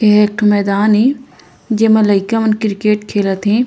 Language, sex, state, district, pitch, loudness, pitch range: Chhattisgarhi, female, Chhattisgarh, Korba, 210 Hz, -13 LUFS, 205-220 Hz